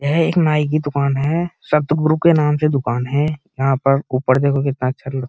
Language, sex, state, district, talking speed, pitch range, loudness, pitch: Hindi, male, Uttar Pradesh, Muzaffarnagar, 225 wpm, 135-155 Hz, -17 LUFS, 145 Hz